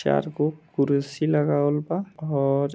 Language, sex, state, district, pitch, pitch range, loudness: Bhojpuri, male, Bihar, Gopalganj, 145 Hz, 140-155 Hz, -24 LUFS